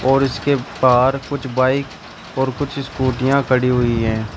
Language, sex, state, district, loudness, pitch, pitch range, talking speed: Hindi, male, Uttar Pradesh, Shamli, -18 LUFS, 130 Hz, 125-135 Hz, 135 wpm